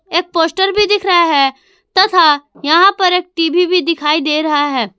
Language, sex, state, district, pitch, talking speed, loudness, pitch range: Hindi, female, Jharkhand, Garhwa, 340 Hz, 195 wpm, -13 LUFS, 300-370 Hz